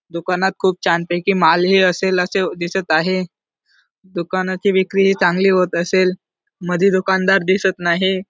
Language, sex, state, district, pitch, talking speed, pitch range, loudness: Marathi, male, Maharashtra, Dhule, 185 Hz, 145 wpm, 175-190 Hz, -17 LUFS